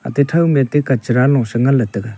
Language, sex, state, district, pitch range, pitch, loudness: Wancho, male, Arunachal Pradesh, Longding, 120-140 Hz, 130 Hz, -15 LUFS